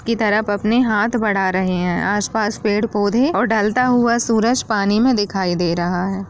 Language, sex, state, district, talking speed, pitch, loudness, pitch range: Hindi, female, Bihar, Jamui, 180 wpm, 210 Hz, -17 LUFS, 195-230 Hz